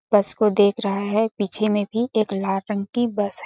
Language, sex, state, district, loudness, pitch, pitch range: Hindi, female, Chhattisgarh, Balrampur, -22 LUFS, 210 Hz, 200-220 Hz